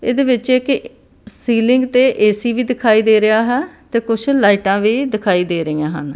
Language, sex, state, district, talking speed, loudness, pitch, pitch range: Punjabi, female, Karnataka, Bangalore, 185 wpm, -15 LUFS, 230 Hz, 205-250 Hz